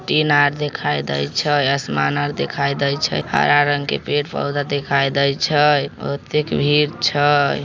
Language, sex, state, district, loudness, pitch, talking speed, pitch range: Maithili, male, Bihar, Samastipur, -18 LUFS, 140 Hz, 155 wpm, 135-145 Hz